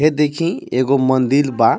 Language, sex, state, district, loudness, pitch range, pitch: Bhojpuri, male, Jharkhand, Palamu, -16 LUFS, 130-150 Hz, 135 Hz